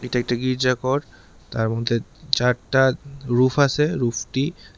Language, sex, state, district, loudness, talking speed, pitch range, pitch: Bengali, male, Tripura, West Tripura, -21 LUFS, 125 wpm, 120-135 Hz, 125 Hz